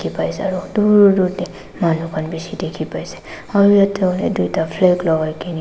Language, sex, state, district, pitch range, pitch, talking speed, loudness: Nagamese, female, Nagaland, Dimapur, 165-200 Hz, 180 Hz, 170 wpm, -17 LUFS